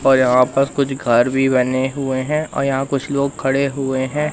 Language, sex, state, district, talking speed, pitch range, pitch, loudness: Hindi, male, Madhya Pradesh, Katni, 220 wpm, 130-140 Hz, 135 Hz, -18 LUFS